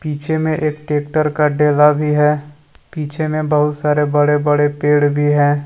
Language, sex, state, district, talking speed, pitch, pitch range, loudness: Hindi, male, Jharkhand, Deoghar, 180 wpm, 150 Hz, 145-150 Hz, -15 LUFS